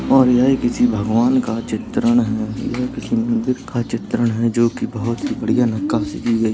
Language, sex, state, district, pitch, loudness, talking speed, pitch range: Hindi, male, Uttar Pradesh, Jalaun, 120 Hz, -18 LUFS, 195 wpm, 115-125 Hz